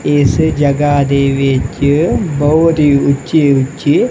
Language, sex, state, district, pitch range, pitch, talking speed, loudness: Punjabi, male, Punjab, Kapurthala, 140-150 Hz, 145 Hz, 115 wpm, -12 LUFS